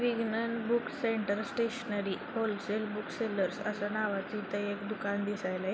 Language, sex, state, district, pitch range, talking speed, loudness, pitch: Marathi, female, Maharashtra, Sindhudurg, 205-230 Hz, 135 wpm, -34 LUFS, 215 Hz